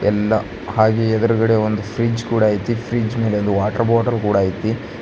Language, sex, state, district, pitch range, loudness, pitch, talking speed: Kannada, male, Karnataka, Bidar, 105-115 Hz, -18 LUFS, 110 Hz, 155 wpm